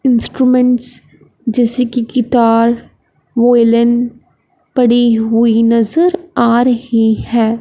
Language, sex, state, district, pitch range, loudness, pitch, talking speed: Hindi, male, Punjab, Fazilka, 230-250 Hz, -12 LUFS, 240 Hz, 85 wpm